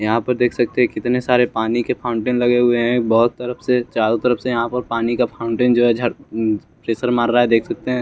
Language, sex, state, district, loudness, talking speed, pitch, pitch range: Hindi, male, Chandigarh, Chandigarh, -18 LUFS, 255 wpm, 120 Hz, 115-125 Hz